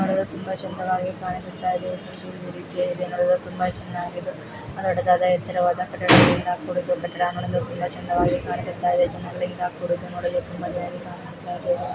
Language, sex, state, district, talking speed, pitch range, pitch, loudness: Kannada, female, Karnataka, Mysore, 70 wpm, 175-185 Hz, 180 Hz, -24 LUFS